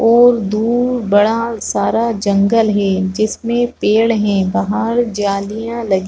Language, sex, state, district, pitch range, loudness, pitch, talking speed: Hindi, female, Chhattisgarh, Rajnandgaon, 205-230 Hz, -15 LUFS, 220 Hz, 130 wpm